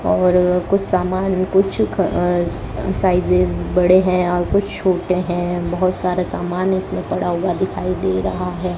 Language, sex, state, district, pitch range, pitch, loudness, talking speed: Hindi, male, Rajasthan, Bikaner, 175-185 Hz, 180 Hz, -18 LUFS, 150 wpm